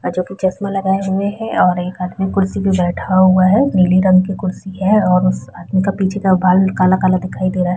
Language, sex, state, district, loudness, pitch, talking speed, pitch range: Hindi, female, Bihar, Vaishali, -15 LUFS, 185 Hz, 245 wpm, 185-195 Hz